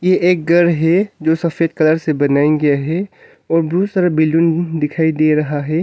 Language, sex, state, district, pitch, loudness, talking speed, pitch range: Hindi, male, Arunachal Pradesh, Longding, 165 Hz, -15 LUFS, 185 wpm, 155-175 Hz